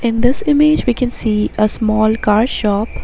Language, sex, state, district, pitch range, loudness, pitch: English, female, Assam, Sonitpur, 215-245 Hz, -15 LUFS, 225 Hz